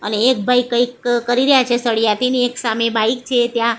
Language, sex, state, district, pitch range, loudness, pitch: Gujarati, female, Gujarat, Gandhinagar, 230-250 Hz, -16 LUFS, 240 Hz